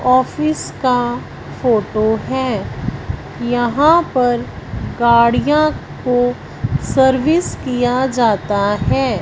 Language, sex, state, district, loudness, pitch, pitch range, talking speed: Hindi, female, Punjab, Fazilka, -16 LUFS, 250 Hz, 235-265 Hz, 80 wpm